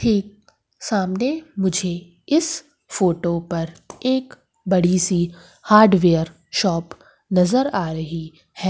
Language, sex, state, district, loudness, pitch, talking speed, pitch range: Hindi, female, Madhya Pradesh, Umaria, -20 LUFS, 185 Hz, 95 wpm, 170-220 Hz